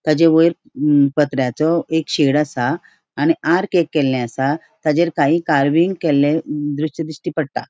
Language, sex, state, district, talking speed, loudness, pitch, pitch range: Konkani, female, Goa, North and South Goa, 130 wpm, -17 LUFS, 155 Hz, 145-165 Hz